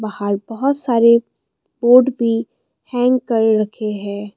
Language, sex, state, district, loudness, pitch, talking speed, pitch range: Hindi, female, Assam, Kamrup Metropolitan, -16 LUFS, 230 Hz, 125 wpm, 210-245 Hz